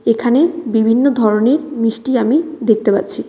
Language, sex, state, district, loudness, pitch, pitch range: Bengali, female, West Bengal, Cooch Behar, -14 LUFS, 240 Hz, 225-280 Hz